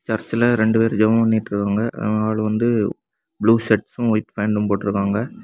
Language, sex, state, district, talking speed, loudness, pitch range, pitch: Tamil, male, Tamil Nadu, Kanyakumari, 145 wpm, -19 LUFS, 105-115 Hz, 110 Hz